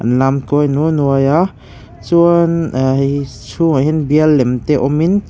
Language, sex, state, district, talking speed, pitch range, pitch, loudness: Mizo, male, Mizoram, Aizawl, 160 wpm, 130-160 Hz, 140 Hz, -14 LUFS